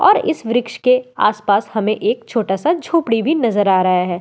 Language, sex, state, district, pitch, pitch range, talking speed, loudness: Hindi, female, Delhi, New Delhi, 230 Hz, 205-255 Hz, 225 wpm, -16 LUFS